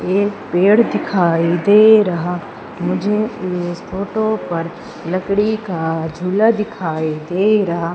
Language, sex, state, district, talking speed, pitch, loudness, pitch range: Hindi, female, Madhya Pradesh, Umaria, 115 wpm, 185 Hz, -17 LUFS, 170-210 Hz